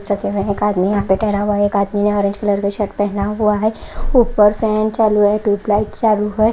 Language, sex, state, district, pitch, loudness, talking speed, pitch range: Hindi, female, Haryana, Jhajjar, 205 Hz, -16 LUFS, 250 wpm, 205-215 Hz